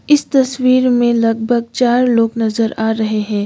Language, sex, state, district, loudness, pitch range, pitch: Hindi, female, Sikkim, Gangtok, -14 LUFS, 225-250 Hz, 235 Hz